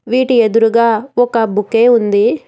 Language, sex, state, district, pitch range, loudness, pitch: Telugu, female, Telangana, Hyderabad, 220-240 Hz, -12 LUFS, 230 Hz